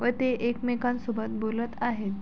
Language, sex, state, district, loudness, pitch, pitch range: Marathi, female, Maharashtra, Sindhudurg, -29 LUFS, 235 Hz, 220-245 Hz